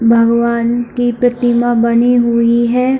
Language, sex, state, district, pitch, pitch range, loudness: Hindi, female, Chhattisgarh, Bilaspur, 235 Hz, 235-245 Hz, -12 LUFS